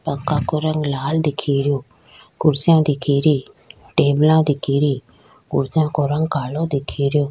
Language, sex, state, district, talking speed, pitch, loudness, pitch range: Rajasthani, female, Rajasthan, Churu, 125 wpm, 145 Hz, -19 LUFS, 140-155 Hz